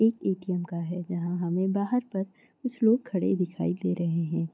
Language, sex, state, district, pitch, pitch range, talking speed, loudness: Hindi, female, Chhattisgarh, Korba, 180 Hz, 170-200 Hz, 200 wpm, -28 LUFS